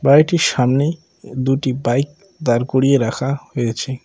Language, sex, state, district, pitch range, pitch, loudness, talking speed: Bengali, male, West Bengal, Cooch Behar, 125-145 Hz, 135 Hz, -18 LUFS, 120 wpm